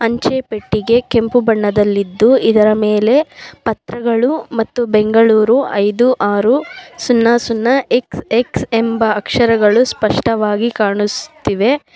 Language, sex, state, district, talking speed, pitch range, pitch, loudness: Kannada, female, Karnataka, Bangalore, 95 wpm, 215-245 Hz, 230 Hz, -14 LUFS